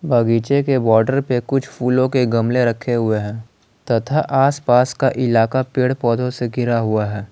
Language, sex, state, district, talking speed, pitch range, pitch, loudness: Hindi, male, Jharkhand, Palamu, 180 wpm, 115-130 Hz, 125 Hz, -17 LUFS